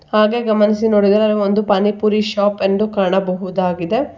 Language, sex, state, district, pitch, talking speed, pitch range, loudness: Kannada, female, Karnataka, Bangalore, 210 Hz, 130 wpm, 195-215 Hz, -16 LUFS